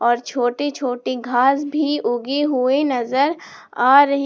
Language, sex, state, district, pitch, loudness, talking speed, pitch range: Hindi, female, Jharkhand, Palamu, 270 Hz, -19 LUFS, 140 wpm, 245-285 Hz